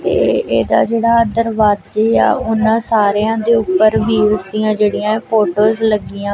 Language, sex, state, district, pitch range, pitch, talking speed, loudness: Punjabi, female, Punjab, Kapurthala, 210-225 Hz, 220 Hz, 140 wpm, -14 LUFS